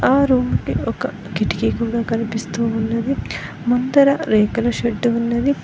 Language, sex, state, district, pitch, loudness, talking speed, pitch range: Telugu, female, Telangana, Mahabubabad, 235 Hz, -19 LUFS, 130 wpm, 230-255 Hz